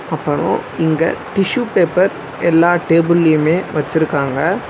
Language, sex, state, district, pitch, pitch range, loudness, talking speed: Tamil, male, Tamil Nadu, Chennai, 165 Hz, 155-180 Hz, -15 LUFS, 90 wpm